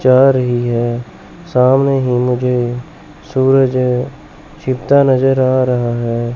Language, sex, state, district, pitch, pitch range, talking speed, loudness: Hindi, male, Chandigarh, Chandigarh, 130 Hz, 125-135 Hz, 125 wpm, -14 LUFS